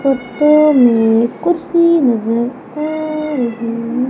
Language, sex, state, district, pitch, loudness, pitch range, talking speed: Hindi, female, Madhya Pradesh, Umaria, 260 Hz, -14 LUFS, 235-305 Hz, 100 wpm